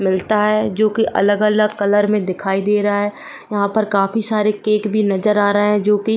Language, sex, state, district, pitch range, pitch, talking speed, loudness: Hindi, female, Uttar Pradesh, Jyotiba Phule Nagar, 205-215 Hz, 210 Hz, 215 wpm, -17 LUFS